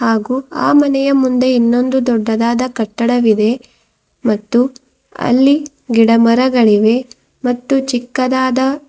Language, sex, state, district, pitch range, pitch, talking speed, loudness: Kannada, female, Karnataka, Bidar, 230-265 Hz, 250 Hz, 80 wpm, -14 LUFS